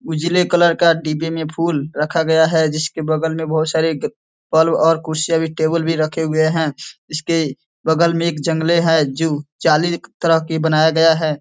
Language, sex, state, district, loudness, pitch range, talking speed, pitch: Hindi, male, Bihar, East Champaran, -17 LUFS, 155-165 Hz, 190 wpm, 160 Hz